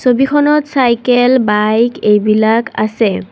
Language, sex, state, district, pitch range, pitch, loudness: Assamese, female, Assam, Kamrup Metropolitan, 215-255 Hz, 235 Hz, -12 LUFS